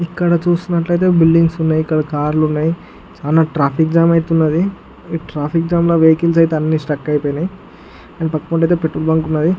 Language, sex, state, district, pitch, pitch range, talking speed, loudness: Telugu, male, Andhra Pradesh, Guntur, 165 Hz, 155-170 Hz, 160 wpm, -15 LUFS